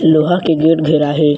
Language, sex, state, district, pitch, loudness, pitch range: Chhattisgarhi, male, Chhattisgarh, Bilaspur, 155 Hz, -13 LUFS, 150-165 Hz